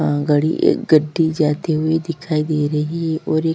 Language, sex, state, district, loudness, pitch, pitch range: Hindi, female, Chhattisgarh, Sukma, -18 LUFS, 155 Hz, 150-160 Hz